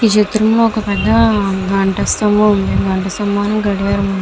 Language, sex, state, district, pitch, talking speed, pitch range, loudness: Telugu, female, Andhra Pradesh, Visakhapatnam, 205 Hz, 170 wpm, 195-215 Hz, -14 LUFS